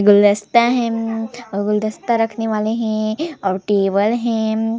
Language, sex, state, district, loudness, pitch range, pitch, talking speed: Hindi, female, Chhattisgarh, Sarguja, -18 LUFS, 210-230 Hz, 220 Hz, 140 wpm